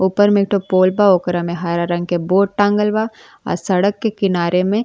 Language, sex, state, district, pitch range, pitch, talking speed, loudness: Bhojpuri, female, Uttar Pradesh, Ghazipur, 175-205 Hz, 190 Hz, 245 wpm, -16 LUFS